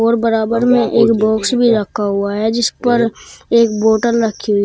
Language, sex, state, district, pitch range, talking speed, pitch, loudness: Hindi, female, Uttar Pradesh, Shamli, 215-235 Hz, 195 wpm, 225 Hz, -14 LUFS